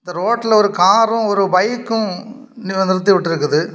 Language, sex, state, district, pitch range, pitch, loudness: Tamil, male, Tamil Nadu, Kanyakumari, 185-225 Hz, 200 Hz, -15 LUFS